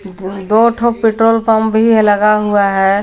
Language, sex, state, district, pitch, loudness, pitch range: Hindi, female, Jharkhand, Garhwa, 215 Hz, -12 LUFS, 200-225 Hz